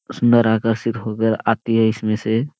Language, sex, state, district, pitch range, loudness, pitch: Hindi, male, Bihar, Jamui, 110-115 Hz, -18 LUFS, 115 Hz